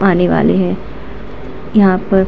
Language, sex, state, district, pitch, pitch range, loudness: Hindi, female, Uttar Pradesh, Hamirpur, 195 Hz, 185-200 Hz, -13 LUFS